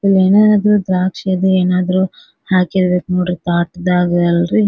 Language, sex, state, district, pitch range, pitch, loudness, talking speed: Kannada, female, Karnataka, Dharwad, 180-190 Hz, 185 Hz, -14 LUFS, 130 wpm